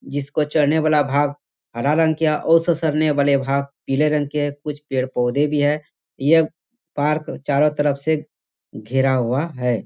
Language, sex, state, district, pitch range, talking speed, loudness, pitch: Hindi, male, Bihar, Bhagalpur, 140-155 Hz, 170 wpm, -20 LUFS, 145 Hz